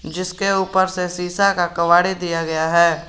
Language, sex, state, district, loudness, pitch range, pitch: Hindi, male, Jharkhand, Garhwa, -18 LUFS, 170-190 Hz, 180 Hz